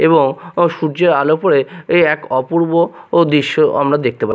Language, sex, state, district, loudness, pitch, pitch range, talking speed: Bengali, male, Odisha, Nuapada, -14 LUFS, 160 Hz, 140-170 Hz, 150 wpm